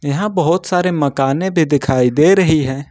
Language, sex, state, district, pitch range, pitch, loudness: Hindi, male, Jharkhand, Ranchi, 140-180 Hz, 155 Hz, -14 LUFS